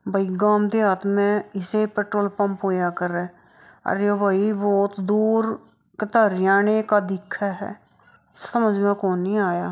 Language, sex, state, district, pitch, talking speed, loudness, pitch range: Hindi, female, Bihar, Saharsa, 200 Hz, 150 wpm, -22 LUFS, 195-210 Hz